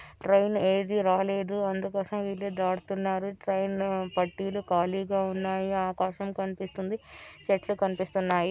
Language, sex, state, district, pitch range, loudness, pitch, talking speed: Telugu, female, Andhra Pradesh, Anantapur, 190-195 Hz, -29 LUFS, 195 Hz, 100 wpm